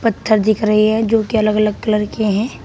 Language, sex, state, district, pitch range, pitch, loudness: Hindi, female, Uttar Pradesh, Shamli, 215-220 Hz, 215 Hz, -16 LUFS